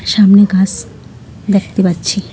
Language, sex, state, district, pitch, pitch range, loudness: Bengali, female, West Bengal, Alipurduar, 195 Hz, 190-205 Hz, -12 LUFS